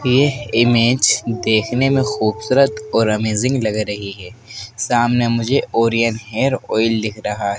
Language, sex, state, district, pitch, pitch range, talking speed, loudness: Hindi, male, Madhya Pradesh, Dhar, 115 Hz, 110-125 Hz, 140 wpm, -17 LUFS